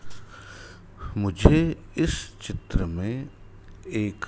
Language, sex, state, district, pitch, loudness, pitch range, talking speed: Hindi, male, Madhya Pradesh, Dhar, 100 Hz, -26 LUFS, 90-105 Hz, 70 wpm